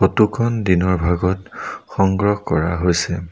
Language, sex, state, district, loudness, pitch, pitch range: Assamese, male, Assam, Sonitpur, -18 LUFS, 95 Hz, 85-100 Hz